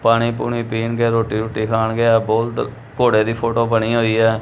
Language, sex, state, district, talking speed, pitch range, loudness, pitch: Punjabi, male, Punjab, Kapurthala, 190 wpm, 110-115 Hz, -18 LUFS, 115 Hz